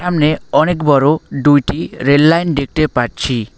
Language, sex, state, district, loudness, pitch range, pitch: Bengali, male, West Bengal, Alipurduar, -14 LUFS, 135-155 Hz, 145 Hz